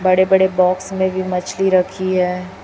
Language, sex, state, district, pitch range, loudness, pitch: Hindi, female, Chhattisgarh, Raipur, 185-190 Hz, -17 LUFS, 185 Hz